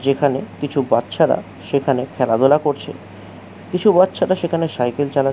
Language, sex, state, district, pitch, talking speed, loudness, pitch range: Bengali, male, West Bengal, Jhargram, 140 Hz, 125 wpm, -18 LUFS, 120-150 Hz